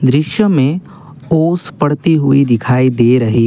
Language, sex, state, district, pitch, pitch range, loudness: Hindi, male, Assam, Kamrup Metropolitan, 145 Hz, 130-160 Hz, -12 LUFS